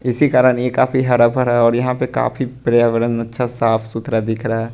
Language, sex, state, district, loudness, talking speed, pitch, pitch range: Hindi, male, Bihar, West Champaran, -16 LUFS, 215 wpm, 120 Hz, 115-125 Hz